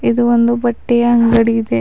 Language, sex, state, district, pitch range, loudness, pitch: Kannada, female, Karnataka, Bidar, 230-240 Hz, -13 LUFS, 235 Hz